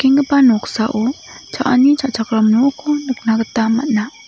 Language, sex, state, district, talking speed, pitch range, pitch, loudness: Garo, female, Meghalaya, South Garo Hills, 100 wpm, 225-275 Hz, 250 Hz, -15 LUFS